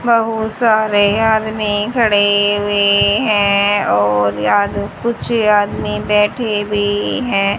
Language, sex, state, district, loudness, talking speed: Hindi, female, Haryana, Rohtak, -14 LUFS, 110 wpm